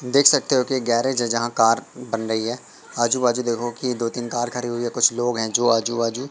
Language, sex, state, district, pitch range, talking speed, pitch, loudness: Hindi, male, Madhya Pradesh, Katni, 115-125 Hz, 240 wpm, 120 Hz, -21 LUFS